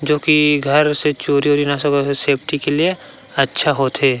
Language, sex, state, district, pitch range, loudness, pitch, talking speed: Chhattisgarhi, male, Chhattisgarh, Rajnandgaon, 140-150 Hz, -16 LUFS, 145 Hz, 215 wpm